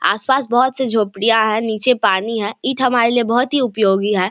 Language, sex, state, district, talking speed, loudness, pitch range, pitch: Hindi, female, Bihar, Samastipur, 210 wpm, -16 LUFS, 210-255 Hz, 225 Hz